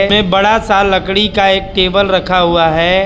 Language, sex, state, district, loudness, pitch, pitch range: Hindi, male, Gujarat, Valsad, -11 LUFS, 195 Hz, 185-200 Hz